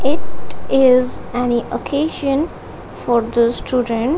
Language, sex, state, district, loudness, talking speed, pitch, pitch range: English, female, Punjab, Kapurthala, -18 LUFS, 100 wpm, 250 Hz, 240-280 Hz